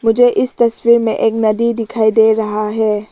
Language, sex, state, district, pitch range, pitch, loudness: Hindi, female, Arunachal Pradesh, Lower Dibang Valley, 220-235 Hz, 225 Hz, -14 LUFS